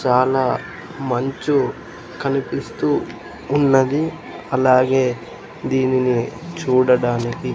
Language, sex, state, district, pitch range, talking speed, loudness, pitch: Telugu, male, Andhra Pradesh, Sri Satya Sai, 125-135 Hz, 55 wpm, -19 LUFS, 130 Hz